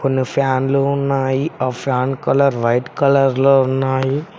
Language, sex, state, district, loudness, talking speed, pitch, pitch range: Telugu, male, Telangana, Mahabubabad, -17 LUFS, 135 wpm, 135 Hz, 130-140 Hz